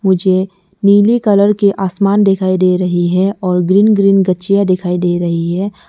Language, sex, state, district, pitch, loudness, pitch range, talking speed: Hindi, female, Arunachal Pradesh, Lower Dibang Valley, 190 Hz, -12 LUFS, 180-200 Hz, 175 wpm